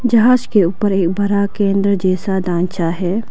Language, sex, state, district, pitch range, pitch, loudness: Hindi, female, Arunachal Pradesh, Lower Dibang Valley, 185-205 Hz, 200 Hz, -16 LUFS